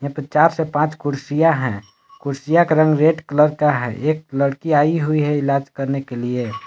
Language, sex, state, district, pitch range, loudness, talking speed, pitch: Hindi, male, Jharkhand, Palamu, 140-155 Hz, -18 LUFS, 190 wpm, 150 Hz